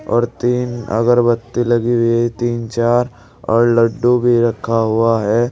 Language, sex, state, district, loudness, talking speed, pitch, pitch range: Hindi, male, Uttar Pradesh, Saharanpur, -16 LUFS, 150 wpm, 120 Hz, 115-120 Hz